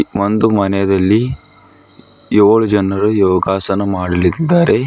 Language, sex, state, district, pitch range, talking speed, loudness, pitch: Kannada, male, Karnataka, Bidar, 95-110 Hz, 75 wpm, -14 LUFS, 100 Hz